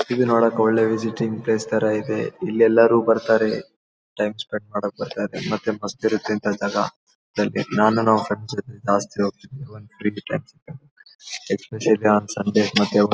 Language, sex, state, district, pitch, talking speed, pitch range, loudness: Kannada, male, Karnataka, Bellary, 110 Hz, 155 wpm, 105-115 Hz, -21 LUFS